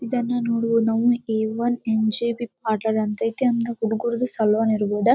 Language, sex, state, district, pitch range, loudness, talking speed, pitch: Kannada, female, Karnataka, Dharwad, 220-240 Hz, -22 LUFS, 105 wpm, 230 Hz